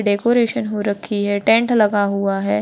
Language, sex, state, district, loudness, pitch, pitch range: Hindi, female, Bihar, Gaya, -17 LUFS, 205 Hz, 200-225 Hz